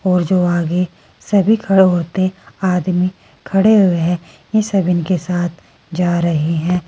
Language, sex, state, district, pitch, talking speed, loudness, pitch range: Hindi, female, Uttar Pradesh, Saharanpur, 180 Hz, 150 wpm, -16 LUFS, 175-190 Hz